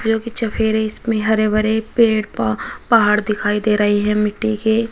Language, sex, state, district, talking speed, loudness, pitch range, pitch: Hindi, female, Uttar Pradesh, Shamli, 170 wpm, -17 LUFS, 210-220 Hz, 215 Hz